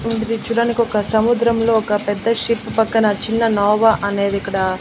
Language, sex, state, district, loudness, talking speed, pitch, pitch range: Telugu, female, Andhra Pradesh, Annamaya, -17 LUFS, 150 wpm, 225 Hz, 205-230 Hz